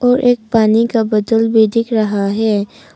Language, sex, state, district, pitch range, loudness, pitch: Hindi, female, Arunachal Pradesh, Papum Pare, 215-230 Hz, -14 LUFS, 225 Hz